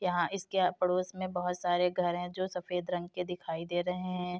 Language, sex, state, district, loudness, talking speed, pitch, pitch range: Hindi, female, Uttar Pradesh, Etah, -33 LUFS, 220 wpm, 180 Hz, 175-180 Hz